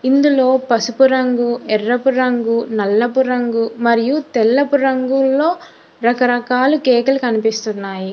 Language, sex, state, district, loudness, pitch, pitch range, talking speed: Telugu, female, Telangana, Hyderabad, -15 LUFS, 245 Hz, 230-265 Hz, 105 wpm